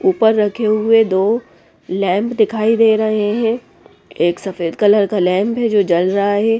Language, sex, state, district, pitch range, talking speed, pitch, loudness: Hindi, female, Bihar, West Champaran, 195-225 Hz, 170 wpm, 215 Hz, -15 LUFS